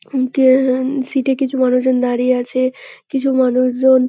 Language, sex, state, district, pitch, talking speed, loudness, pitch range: Bengali, female, West Bengal, Kolkata, 260 Hz, 160 wpm, -16 LUFS, 255-265 Hz